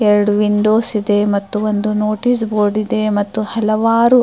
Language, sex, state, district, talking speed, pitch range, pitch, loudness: Kannada, female, Karnataka, Mysore, 155 wpm, 210-220 Hz, 215 Hz, -15 LUFS